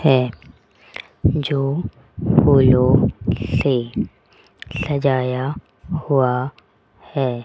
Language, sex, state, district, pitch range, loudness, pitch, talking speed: Hindi, female, Rajasthan, Jaipur, 125-140 Hz, -19 LUFS, 135 Hz, 55 wpm